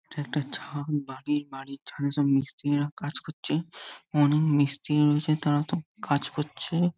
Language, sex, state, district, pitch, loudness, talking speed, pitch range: Bengali, male, West Bengal, Jhargram, 145 Hz, -27 LUFS, 145 wpm, 145-150 Hz